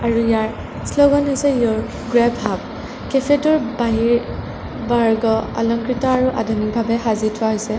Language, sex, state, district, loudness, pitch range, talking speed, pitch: Assamese, female, Assam, Sonitpur, -18 LUFS, 225-255 Hz, 140 wpm, 230 Hz